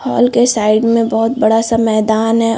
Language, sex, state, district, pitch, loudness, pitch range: Hindi, female, Chhattisgarh, Bastar, 225 Hz, -13 LUFS, 220-230 Hz